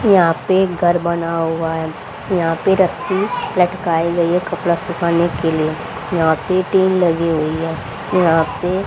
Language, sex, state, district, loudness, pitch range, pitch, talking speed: Hindi, female, Haryana, Rohtak, -17 LUFS, 165-185 Hz, 170 Hz, 160 wpm